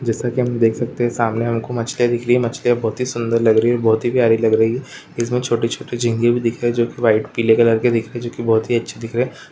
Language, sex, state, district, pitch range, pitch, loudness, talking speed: Hindi, female, Uttarakhand, Uttarkashi, 115-120 Hz, 120 Hz, -18 LUFS, 290 wpm